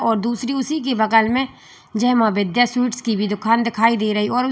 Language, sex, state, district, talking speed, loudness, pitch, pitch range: Hindi, female, Uttar Pradesh, Lalitpur, 210 wpm, -19 LUFS, 230 Hz, 220-250 Hz